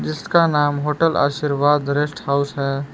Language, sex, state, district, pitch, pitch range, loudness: Hindi, male, Jharkhand, Palamu, 145 Hz, 140-150 Hz, -19 LUFS